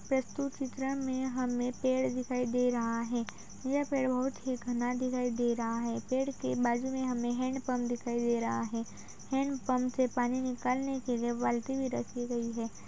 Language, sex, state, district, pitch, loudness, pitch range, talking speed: Hindi, female, Uttar Pradesh, Budaun, 250 Hz, -33 LUFS, 240-260 Hz, 190 wpm